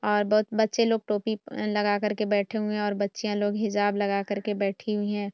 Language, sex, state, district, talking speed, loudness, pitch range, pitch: Hindi, female, Bihar, Saharsa, 225 wpm, -27 LUFS, 205-215 Hz, 210 Hz